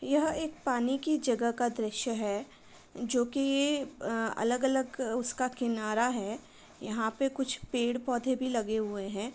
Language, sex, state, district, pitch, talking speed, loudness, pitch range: Hindi, female, Uttar Pradesh, Varanasi, 245 Hz, 160 wpm, -31 LUFS, 225-270 Hz